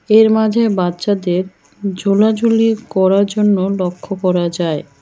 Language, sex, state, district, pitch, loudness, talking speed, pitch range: Bengali, female, West Bengal, Cooch Behar, 195 Hz, -15 LUFS, 110 wpm, 180-215 Hz